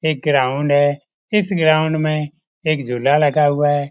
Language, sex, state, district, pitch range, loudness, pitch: Hindi, male, Bihar, Lakhisarai, 145-155 Hz, -17 LUFS, 150 Hz